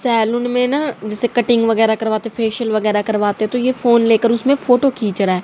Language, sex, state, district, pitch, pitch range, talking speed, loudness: Hindi, female, Haryana, Rohtak, 230 Hz, 215-245 Hz, 220 wpm, -16 LUFS